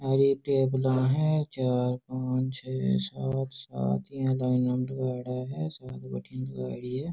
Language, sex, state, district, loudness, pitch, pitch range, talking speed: Rajasthani, male, Rajasthan, Nagaur, -29 LUFS, 130 Hz, 125-135 Hz, 160 wpm